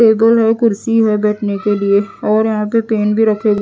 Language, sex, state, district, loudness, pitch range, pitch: Hindi, female, Odisha, Nuapada, -14 LUFS, 210-225 Hz, 215 Hz